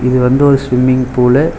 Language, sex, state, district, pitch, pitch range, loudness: Tamil, male, Tamil Nadu, Chennai, 130 Hz, 125-135 Hz, -11 LUFS